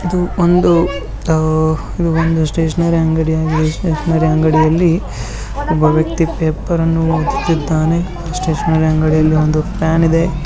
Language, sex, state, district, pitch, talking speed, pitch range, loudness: Kannada, male, Karnataka, Bijapur, 160 Hz, 95 wpm, 155-170 Hz, -15 LUFS